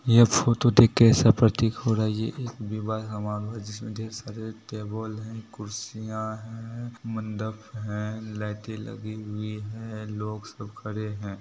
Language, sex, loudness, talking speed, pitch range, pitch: Bhojpuri, male, -27 LUFS, 165 wpm, 105-115 Hz, 110 Hz